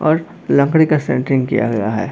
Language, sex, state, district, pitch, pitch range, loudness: Hindi, male, Bihar, Darbhanga, 140 Hz, 120-155 Hz, -16 LUFS